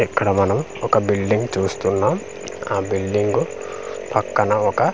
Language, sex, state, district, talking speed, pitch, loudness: Telugu, male, Andhra Pradesh, Manyam, 110 wpm, 105 Hz, -20 LUFS